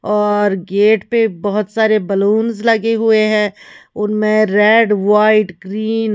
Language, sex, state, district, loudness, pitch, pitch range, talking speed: Hindi, female, Haryana, Charkhi Dadri, -14 LUFS, 215 Hz, 205-220 Hz, 135 wpm